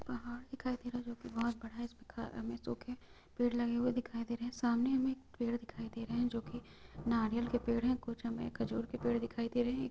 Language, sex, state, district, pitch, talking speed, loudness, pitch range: Hindi, female, Chhattisgarh, Raigarh, 235 Hz, 260 wpm, -38 LUFS, 230-245 Hz